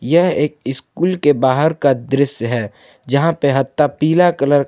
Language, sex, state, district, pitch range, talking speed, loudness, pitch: Hindi, male, Jharkhand, Palamu, 135-160 Hz, 180 wpm, -16 LUFS, 145 Hz